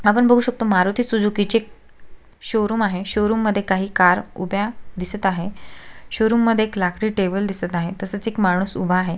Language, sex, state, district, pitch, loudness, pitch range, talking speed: Marathi, female, Maharashtra, Solapur, 205 Hz, -20 LUFS, 185-220 Hz, 185 wpm